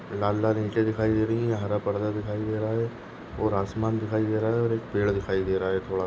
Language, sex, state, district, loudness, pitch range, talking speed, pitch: Hindi, male, Goa, North and South Goa, -27 LUFS, 100-110 Hz, 265 wpm, 110 Hz